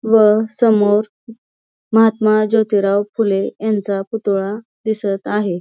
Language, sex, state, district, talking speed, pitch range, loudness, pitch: Marathi, female, Maharashtra, Pune, 95 wpm, 205-225 Hz, -16 LUFS, 215 Hz